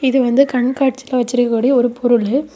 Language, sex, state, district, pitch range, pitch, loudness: Tamil, female, Tamil Nadu, Kanyakumari, 245-265 Hz, 250 Hz, -15 LUFS